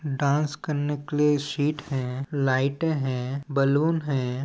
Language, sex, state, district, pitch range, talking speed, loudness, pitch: Chhattisgarhi, male, Chhattisgarh, Balrampur, 135-150 Hz, 120 wpm, -25 LUFS, 145 Hz